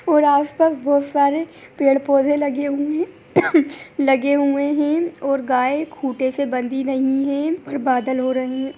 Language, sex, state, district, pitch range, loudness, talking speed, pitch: Hindi, female, Bihar, Begusarai, 270-295 Hz, -19 LUFS, 175 wpm, 280 Hz